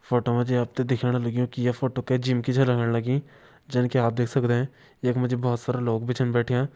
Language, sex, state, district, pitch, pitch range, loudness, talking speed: Garhwali, male, Uttarakhand, Uttarkashi, 125 Hz, 120-130 Hz, -25 LUFS, 265 wpm